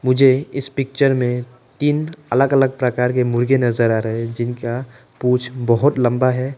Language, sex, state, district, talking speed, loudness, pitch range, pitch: Hindi, male, Arunachal Pradesh, Papum Pare, 175 wpm, -18 LUFS, 120-135 Hz, 125 Hz